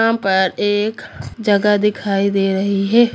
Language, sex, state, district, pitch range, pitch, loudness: Hindi, male, Bihar, Gaya, 195-215 Hz, 205 Hz, -17 LUFS